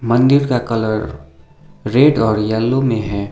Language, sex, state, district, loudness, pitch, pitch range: Hindi, male, Sikkim, Gangtok, -15 LUFS, 115 Hz, 110-130 Hz